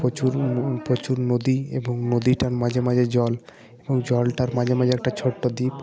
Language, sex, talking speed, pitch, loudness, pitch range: Bengali, male, 175 wpm, 125 Hz, -23 LUFS, 120-130 Hz